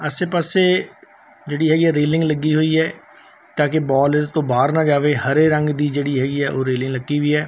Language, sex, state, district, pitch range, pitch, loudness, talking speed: Punjabi, male, Punjab, Fazilka, 145-155 Hz, 150 Hz, -17 LUFS, 225 wpm